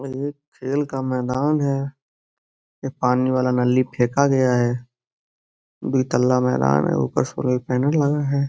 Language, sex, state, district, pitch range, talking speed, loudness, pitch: Hindi, male, Uttar Pradesh, Gorakhpur, 125-140 Hz, 150 wpm, -21 LUFS, 130 Hz